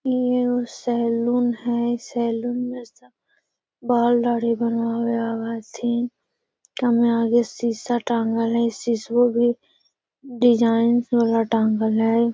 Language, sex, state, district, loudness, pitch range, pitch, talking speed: Magahi, female, Bihar, Gaya, -21 LUFS, 230-245 Hz, 235 Hz, 125 wpm